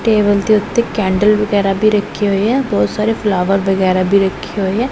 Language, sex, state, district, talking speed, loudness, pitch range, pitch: Punjabi, female, Punjab, Pathankot, 205 wpm, -14 LUFS, 195-215 Hz, 205 Hz